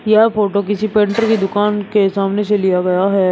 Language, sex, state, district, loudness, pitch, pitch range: Hindi, male, Uttar Pradesh, Shamli, -15 LUFS, 205 Hz, 195-210 Hz